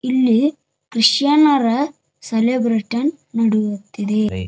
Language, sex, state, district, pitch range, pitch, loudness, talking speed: Kannada, male, Karnataka, Dharwad, 215-275 Hz, 230 Hz, -17 LUFS, 65 wpm